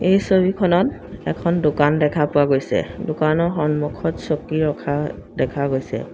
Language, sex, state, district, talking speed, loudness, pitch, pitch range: Assamese, female, Assam, Sonitpur, 135 wpm, -20 LUFS, 150 Hz, 145-170 Hz